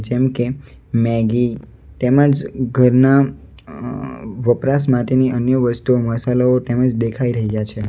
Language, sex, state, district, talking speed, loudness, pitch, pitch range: Gujarati, male, Gujarat, Valsad, 105 wpm, -17 LUFS, 125 Hz, 115-130 Hz